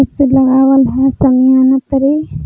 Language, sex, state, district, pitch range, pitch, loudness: Magahi, female, Jharkhand, Palamu, 260-270 Hz, 265 Hz, -10 LUFS